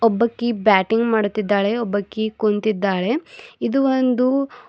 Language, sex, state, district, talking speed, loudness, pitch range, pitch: Kannada, female, Karnataka, Bidar, 90 wpm, -20 LUFS, 210-250 Hz, 225 Hz